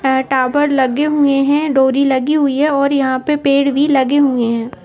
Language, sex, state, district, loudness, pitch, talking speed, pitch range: Hindi, female, Uttar Pradesh, Etah, -14 LUFS, 275 Hz, 200 wpm, 265-290 Hz